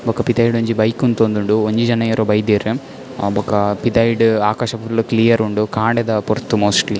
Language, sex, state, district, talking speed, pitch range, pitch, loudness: Tulu, male, Karnataka, Dakshina Kannada, 170 wpm, 105-115 Hz, 115 Hz, -16 LUFS